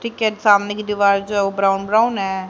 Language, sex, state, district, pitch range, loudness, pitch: Hindi, male, Haryana, Rohtak, 195-215 Hz, -17 LUFS, 205 Hz